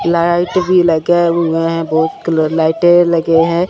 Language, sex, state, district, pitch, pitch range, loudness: Hindi, male, Chandigarh, Chandigarh, 170 Hz, 165-175 Hz, -13 LUFS